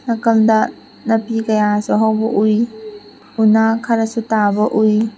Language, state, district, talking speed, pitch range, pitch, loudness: Manipuri, Manipur, Imphal West, 105 wpm, 215-225 Hz, 220 Hz, -16 LUFS